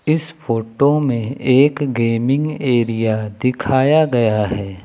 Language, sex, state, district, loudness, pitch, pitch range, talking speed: Hindi, male, Uttar Pradesh, Lucknow, -17 LUFS, 125 Hz, 115-145 Hz, 110 wpm